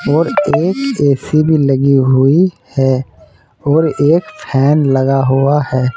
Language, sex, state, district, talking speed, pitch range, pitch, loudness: Hindi, male, Uttar Pradesh, Saharanpur, 130 wpm, 130-160 Hz, 140 Hz, -13 LUFS